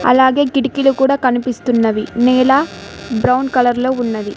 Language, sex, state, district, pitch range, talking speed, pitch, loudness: Telugu, female, Telangana, Mahabubabad, 245-265 Hz, 125 wpm, 255 Hz, -14 LUFS